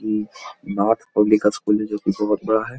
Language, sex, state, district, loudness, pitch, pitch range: Hindi, male, Bihar, Lakhisarai, -20 LUFS, 105 Hz, 105-110 Hz